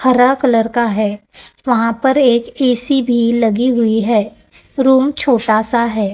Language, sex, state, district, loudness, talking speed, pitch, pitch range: Hindi, female, Maharashtra, Gondia, -13 LUFS, 155 wpm, 235 Hz, 225-260 Hz